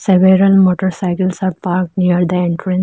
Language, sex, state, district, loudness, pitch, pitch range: English, female, Arunachal Pradesh, Lower Dibang Valley, -14 LUFS, 185 Hz, 180-190 Hz